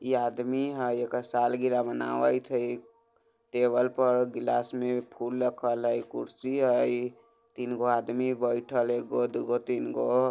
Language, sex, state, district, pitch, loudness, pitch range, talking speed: Bajjika, male, Bihar, Vaishali, 125 Hz, -29 LUFS, 120-130 Hz, 150 wpm